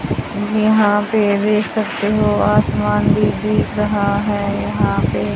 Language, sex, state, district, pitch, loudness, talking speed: Hindi, female, Haryana, Jhajjar, 205 Hz, -16 LUFS, 135 wpm